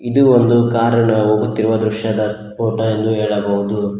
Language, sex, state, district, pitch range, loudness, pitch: Kannada, male, Karnataka, Koppal, 105-115 Hz, -16 LUFS, 110 Hz